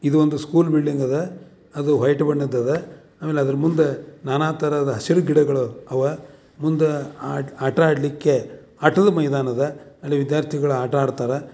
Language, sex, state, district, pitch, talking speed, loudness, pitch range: Kannada, male, Karnataka, Dharwad, 145 Hz, 140 wpm, -21 LUFS, 140-155 Hz